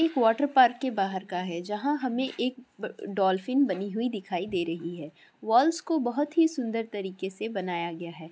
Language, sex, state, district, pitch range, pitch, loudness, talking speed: Hindi, female, Andhra Pradesh, Chittoor, 185-260 Hz, 220 Hz, -28 LUFS, 175 wpm